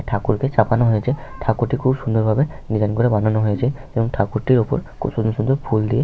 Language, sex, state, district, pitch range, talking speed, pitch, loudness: Bengali, male, West Bengal, Malda, 110-135 Hz, 220 wpm, 115 Hz, -19 LUFS